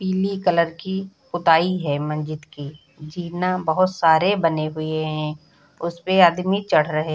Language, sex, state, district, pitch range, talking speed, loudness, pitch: Hindi, female, Bihar, Samastipur, 155-185 Hz, 150 wpm, -21 LUFS, 165 Hz